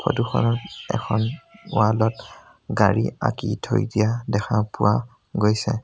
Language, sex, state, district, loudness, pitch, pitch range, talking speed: Assamese, male, Assam, Sonitpur, -23 LUFS, 110 Hz, 105-120 Hz, 125 wpm